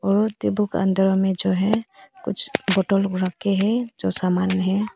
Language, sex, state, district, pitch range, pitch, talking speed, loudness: Hindi, female, Arunachal Pradesh, Papum Pare, 190-210 Hz, 195 Hz, 195 wpm, -20 LUFS